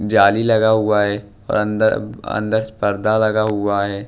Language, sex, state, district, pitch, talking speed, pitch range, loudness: Hindi, male, Maharashtra, Washim, 105 Hz, 160 wpm, 100-110 Hz, -17 LUFS